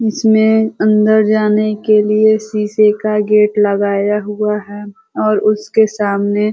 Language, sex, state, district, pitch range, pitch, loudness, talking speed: Hindi, female, Uttar Pradesh, Ghazipur, 210-215 Hz, 215 Hz, -13 LUFS, 140 wpm